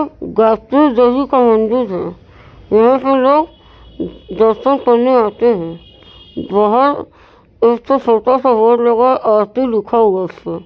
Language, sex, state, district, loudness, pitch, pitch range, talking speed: Hindi, female, Uttar Pradesh, Varanasi, -13 LUFS, 240 Hz, 220-260 Hz, 135 wpm